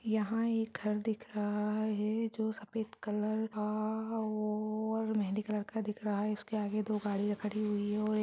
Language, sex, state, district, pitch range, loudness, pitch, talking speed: Hindi, female, Chhattisgarh, Raigarh, 210-220 Hz, -35 LUFS, 215 Hz, 180 wpm